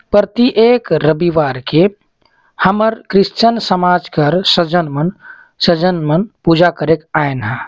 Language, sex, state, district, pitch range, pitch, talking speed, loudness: Chhattisgarhi, male, Chhattisgarh, Jashpur, 160-205 Hz, 175 Hz, 115 wpm, -13 LUFS